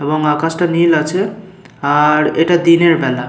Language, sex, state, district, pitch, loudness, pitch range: Bengali, male, West Bengal, Paschim Medinipur, 165 Hz, -13 LUFS, 150-175 Hz